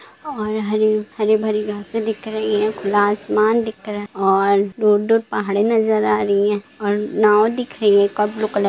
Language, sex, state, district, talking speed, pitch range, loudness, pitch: Hindi, female, Bihar, Sitamarhi, 200 wpm, 205-215 Hz, -18 LUFS, 210 Hz